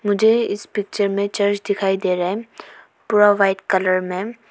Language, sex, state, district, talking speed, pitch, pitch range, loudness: Hindi, female, Arunachal Pradesh, Papum Pare, 175 wpm, 200 Hz, 190-210 Hz, -19 LUFS